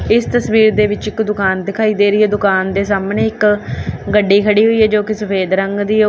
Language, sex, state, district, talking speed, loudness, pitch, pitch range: Punjabi, female, Punjab, Kapurthala, 225 wpm, -14 LUFS, 210 Hz, 200-215 Hz